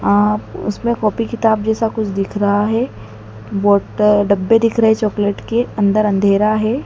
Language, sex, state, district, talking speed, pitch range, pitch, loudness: Hindi, female, Madhya Pradesh, Dhar, 160 wpm, 200-225 Hz, 210 Hz, -16 LUFS